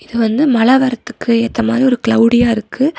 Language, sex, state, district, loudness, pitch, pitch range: Tamil, female, Tamil Nadu, Nilgiris, -13 LUFS, 235 Hz, 230-260 Hz